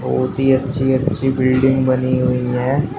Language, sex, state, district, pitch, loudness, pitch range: Hindi, male, Uttar Pradesh, Shamli, 130 Hz, -17 LUFS, 125-135 Hz